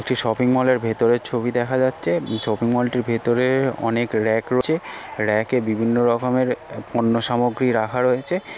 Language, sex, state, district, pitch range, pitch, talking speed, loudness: Bengali, female, West Bengal, North 24 Parganas, 115-125 Hz, 120 Hz, 180 wpm, -21 LUFS